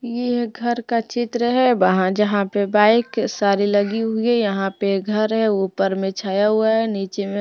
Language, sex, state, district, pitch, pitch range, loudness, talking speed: Hindi, female, Maharashtra, Mumbai Suburban, 215 Hz, 200-235 Hz, -19 LUFS, 195 wpm